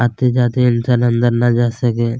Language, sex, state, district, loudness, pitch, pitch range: Hindi, male, Chhattisgarh, Kabirdham, -15 LUFS, 120 Hz, 120-125 Hz